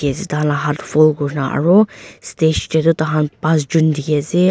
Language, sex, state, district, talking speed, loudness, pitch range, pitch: Nagamese, female, Nagaland, Dimapur, 175 wpm, -16 LUFS, 145-160 Hz, 155 Hz